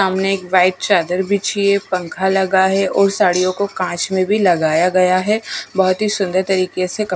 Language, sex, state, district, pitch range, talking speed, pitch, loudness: Hindi, female, Bihar, West Champaran, 185-195 Hz, 210 wpm, 190 Hz, -16 LUFS